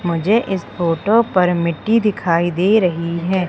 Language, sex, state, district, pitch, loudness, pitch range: Hindi, female, Madhya Pradesh, Umaria, 180 Hz, -17 LUFS, 170-210 Hz